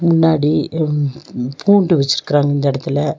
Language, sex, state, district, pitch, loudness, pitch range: Tamil, female, Tamil Nadu, Nilgiris, 145 Hz, -16 LUFS, 140-160 Hz